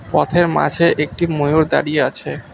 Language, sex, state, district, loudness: Bengali, male, West Bengal, Alipurduar, -16 LUFS